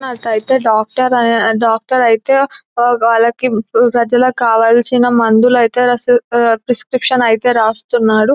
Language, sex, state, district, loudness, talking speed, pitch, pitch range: Telugu, female, Telangana, Nalgonda, -12 LUFS, 85 wpm, 235 Hz, 225-250 Hz